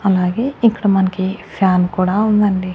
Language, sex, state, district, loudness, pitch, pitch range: Telugu, male, Andhra Pradesh, Annamaya, -16 LUFS, 195 Hz, 185-210 Hz